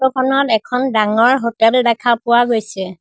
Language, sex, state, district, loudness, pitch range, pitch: Assamese, female, Assam, Sonitpur, -14 LUFS, 225-255 Hz, 235 Hz